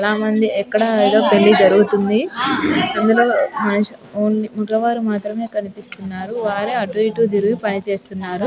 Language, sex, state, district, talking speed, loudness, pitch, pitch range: Telugu, female, Telangana, Nalgonda, 120 wpm, -17 LUFS, 215 Hz, 205-220 Hz